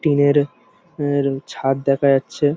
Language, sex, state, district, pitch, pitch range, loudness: Bengali, male, West Bengal, Paschim Medinipur, 140 Hz, 135-145 Hz, -19 LUFS